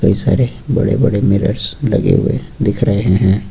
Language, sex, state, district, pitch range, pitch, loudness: Hindi, male, Uttar Pradesh, Lucknow, 100-105 Hz, 100 Hz, -14 LUFS